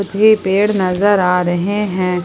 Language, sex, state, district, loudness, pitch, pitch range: Hindi, female, Jharkhand, Palamu, -14 LUFS, 195 Hz, 180-205 Hz